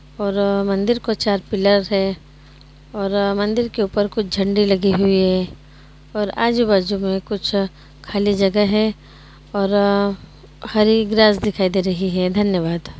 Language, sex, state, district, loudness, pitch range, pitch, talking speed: Hindi, female, Uttar Pradesh, Jyotiba Phule Nagar, -18 LUFS, 190-210 Hz, 200 Hz, 170 wpm